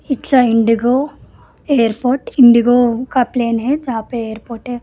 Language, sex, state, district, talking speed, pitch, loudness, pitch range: Hindi, female, Delhi, New Delhi, 150 wpm, 245 Hz, -14 LUFS, 230-255 Hz